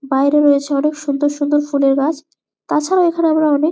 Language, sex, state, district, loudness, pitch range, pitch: Bengali, female, West Bengal, Malda, -15 LUFS, 280-310 Hz, 295 Hz